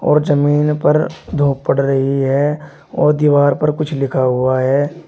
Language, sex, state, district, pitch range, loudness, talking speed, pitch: Hindi, male, Uttar Pradesh, Shamli, 135-150 Hz, -15 LUFS, 165 wpm, 145 Hz